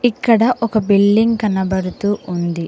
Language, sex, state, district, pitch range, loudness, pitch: Telugu, female, Telangana, Mahabubabad, 190-230 Hz, -16 LUFS, 205 Hz